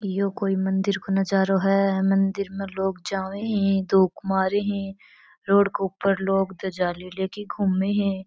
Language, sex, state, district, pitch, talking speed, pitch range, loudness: Marwari, female, Rajasthan, Churu, 195 Hz, 165 wpm, 190-200 Hz, -24 LUFS